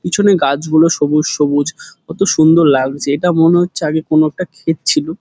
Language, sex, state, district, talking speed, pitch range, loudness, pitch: Bengali, male, West Bengal, Dakshin Dinajpur, 175 wpm, 145-175 Hz, -13 LUFS, 160 Hz